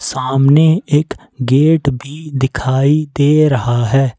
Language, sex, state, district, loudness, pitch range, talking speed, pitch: Hindi, male, Jharkhand, Ranchi, -13 LUFS, 130-150 Hz, 115 wpm, 140 Hz